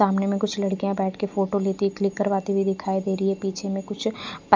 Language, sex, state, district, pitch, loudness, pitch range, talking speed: Hindi, female, Punjab, Fazilka, 195 Hz, -25 LUFS, 195-205 Hz, 235 wpm